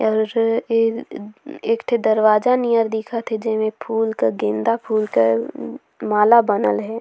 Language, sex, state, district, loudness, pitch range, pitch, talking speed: Surgujia, female, Chhattisgarh, Sarguja, -19 LUFS, 215-230 Hz, 220 Hz, 135 wpm